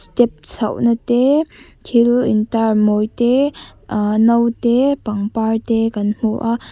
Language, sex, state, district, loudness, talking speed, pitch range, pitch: Mizo, female, Mizoram, Aizawl, -16 LUFS, 135 wpm, 220-240 Hz, 230 Hz